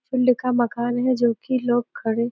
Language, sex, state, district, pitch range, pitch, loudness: Hindi, female, Uttar Pradesh, Deoria, 235-255 Hz, 240 Hz, -22 LUFS